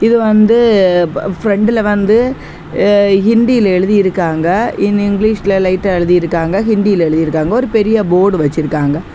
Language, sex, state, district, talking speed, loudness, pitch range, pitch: Tamil, female, Tamil Nadu, Kanyakumari, 110 wpm, -12 LUFS, 175-215 Hz, 200 Hz